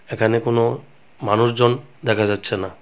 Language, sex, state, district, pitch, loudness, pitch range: Bengali, male, Tripura, West Tripura, 115 Hz, -19 LUFS, 110-120 Hz